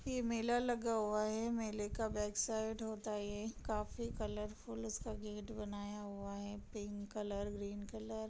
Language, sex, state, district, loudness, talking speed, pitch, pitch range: Hindi, female, Chhattisgarh, Kabirdham, -42 LUFS, 175 wpm, 210 Hz, 205-220 Hz